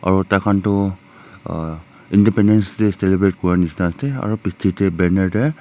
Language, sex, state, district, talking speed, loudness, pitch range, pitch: Nagamese, male, Nagaland, Kohima, 160 wpm, -18 LUFS, 90-105 Hz, 95 Hz